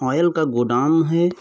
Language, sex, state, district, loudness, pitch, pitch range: Hindi, male, Uttar Pradesh, Varanasi, -19 LUFS, 160 Hz, 130-170 Hz